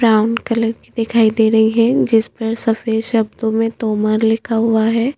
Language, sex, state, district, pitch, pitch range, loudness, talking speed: Hindi, female, Chhattisgarh, Bastar, 225 Hz, 220-230 Hz, -16 LUFS, 185 wpm